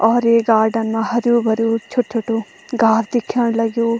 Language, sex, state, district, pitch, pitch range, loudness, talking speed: Garhwali, female, Uttarakhand, Tehri Garhwal, 230 Hz, 225-235 Hz, -17 LUFS, 135 wpm